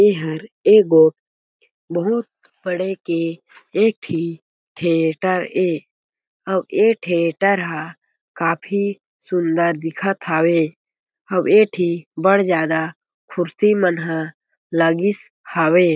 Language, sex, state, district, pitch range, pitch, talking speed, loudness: Chhattisgarhi, male, Chhattisgarh, Jashpur, 165-195 Hz, 175 Hz, 105 wpm, -19 LUFS